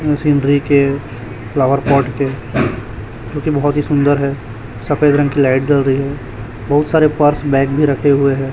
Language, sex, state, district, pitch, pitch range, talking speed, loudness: Hindi, male, Chhattisgarh, Raipur, 140 Hz, 125-145 Hz, 190 wpm, -15 LUFS